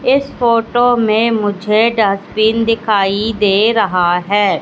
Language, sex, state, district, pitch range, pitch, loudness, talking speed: Hindi, female, Madhya Pradesh, Katni, 205-230 Hz, 220 Hz, -13 LUFS, 115 wpm